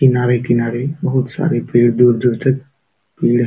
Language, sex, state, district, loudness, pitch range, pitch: Hindi, male, Uttar Pradesh, Jalaun, -16 LUFS, 120-135 Hz, 125 Hz